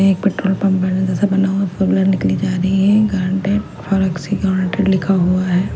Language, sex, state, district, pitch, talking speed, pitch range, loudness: Hindi, female, Punjab, Kapurthala, 190 Hz, 95 wpm, 185-195 Hz, -16 LUFS